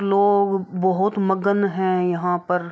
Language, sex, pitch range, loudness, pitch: Maithili, female, 180-200 Hz, -20 LUFS, 190 Hz